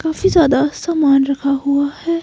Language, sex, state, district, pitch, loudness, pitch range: Hindi, female, Himachal Pradesh, Shimla, 285 Hz, -15 LUFS, 275-330 Hz